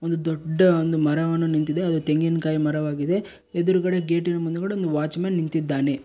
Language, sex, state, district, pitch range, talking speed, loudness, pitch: Kannada, male, Karnataka, Bellary, 155-175 Hz, 160 wpm, -23 LUFS, 165 Hz